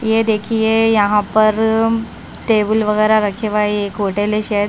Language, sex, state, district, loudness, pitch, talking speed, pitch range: Hindi, female, Himachal Pradesh, Shimla, -16 LUFS, 215 Hz, 155 wpm, 210-220 Hz